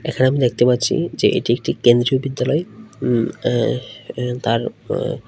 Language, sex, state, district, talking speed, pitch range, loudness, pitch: Bengali, male, Tripura, West Tripura, 150 wpm, 120-130 Hz, -19 LUFS, 125 Hz